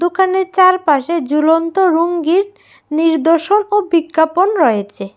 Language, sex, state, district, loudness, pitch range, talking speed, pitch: Bengali, female, Tripura, West Tripura, -14 LUFS, 320-375 Hz, 95 wpm, 335 Hz